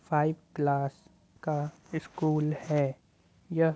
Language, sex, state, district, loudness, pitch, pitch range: Hindi, male, Bihar, Muzaffarpur, -31 LUFS, 150 Hz, 140-160 Hz